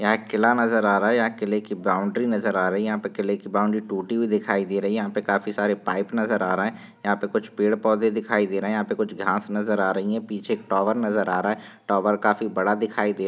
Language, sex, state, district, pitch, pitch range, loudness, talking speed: Hindi, male, Chhattisgarh, Sukma, 105 Hz, 100-110 Hz, -24 LUFS, 290 wpm